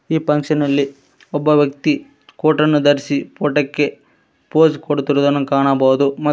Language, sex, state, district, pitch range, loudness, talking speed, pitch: Kannada, male, Karnataka, Koppal, 140-150 Hz, -16 LUFS, 105 wpm, 145 Hz